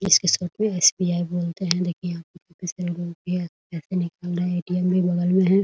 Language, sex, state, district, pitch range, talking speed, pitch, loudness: Hindi, female, Bihar, Muzaffarpur, 175-180 Hz, 95 wpm, 180 Hz, -23 LUFS